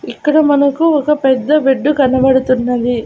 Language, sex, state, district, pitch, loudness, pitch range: Telugu, female, Andhra Pradesh, Annamaya, 270 Hz, -12 LUFS, 260-300 Hz